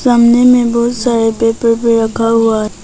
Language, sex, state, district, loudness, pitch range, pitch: Hindi, female, Arunachal Pradesh, Papum Pare, -11 LUFS, 225-235 Hz, 230 Hz